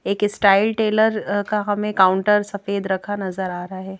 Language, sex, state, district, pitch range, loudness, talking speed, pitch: Hindi, female, Madhya Pradesh, Bhopal, 190-210 Hz, -20 LUFS, 180 wpm, 205 Hz